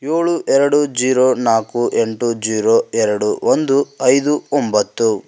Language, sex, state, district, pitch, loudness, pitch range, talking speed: Kannada, male, Karnataka, Koppal, 125 Hz, -16 LUFS, 110-140 Hz, 115 wpm